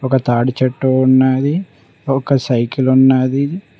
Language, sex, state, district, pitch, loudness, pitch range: Telugu, male, Telangana, Mahabubabad, 130 Hz, -14 LUFS, 130-135 Hz